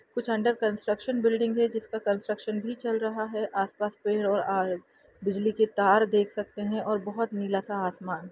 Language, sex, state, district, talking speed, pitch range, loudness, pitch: Hindi, female, Bihar, Saran, 180 wpm, 200-220 Hz, -28 LUFS, 210 Hz